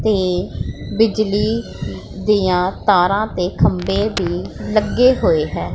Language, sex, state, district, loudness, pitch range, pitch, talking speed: Punjabi, female, Punjab, Pathankot, -18 LUFS, 180-215 Hz, 205 Hz, 105 wpm